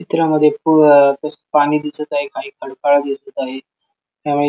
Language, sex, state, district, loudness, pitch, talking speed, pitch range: Marathi, male, Maharashtra, Sindhudurg, -16 LUFS, 145 Hz, 145 wpm, 140-150 Hz